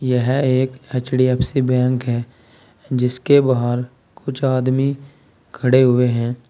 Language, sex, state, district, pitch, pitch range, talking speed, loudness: Hindi, male, Uttar Pradesh, Saharanpur, 125 Hz, 120-130 Hz, 110 wpm, -18 LUFS